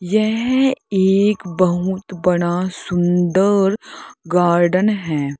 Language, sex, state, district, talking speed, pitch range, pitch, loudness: Hindi, female, Uttar Pradesh, Saharanpur, 80 wpm, 175-200 Hz, 185 Hz, -17 LUFS